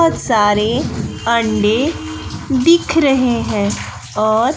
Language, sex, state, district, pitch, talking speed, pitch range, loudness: Hindi, female, Bihar, West Champaran, 230 Hz, 90 wpm, 210-270 Hz, -16 LUFS